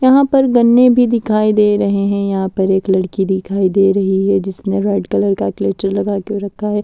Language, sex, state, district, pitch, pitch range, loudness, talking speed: Hindi, female, Delhi, New Delhi, 200 Hz, 190-210 Hz, -14 LUFS, 220 wpm